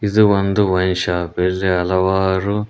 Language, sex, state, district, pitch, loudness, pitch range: Kannada, male, Karnataka, Koppal, 95 Hz, -17 LUFS, 90-100 Hz